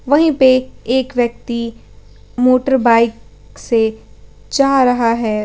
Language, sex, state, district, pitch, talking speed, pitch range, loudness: Hindi, female, Jharkhand, Garhwa, 245 Hz, 100 wpm, 230-260 Hz, -15 LUFS